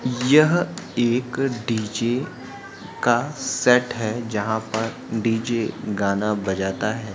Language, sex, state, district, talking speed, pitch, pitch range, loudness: Hindi, male, Uttar Pradesh, Jyotiba Phule Nagar, 100 wpm, 115 Hz, 105-125 Hz, -22 LUFS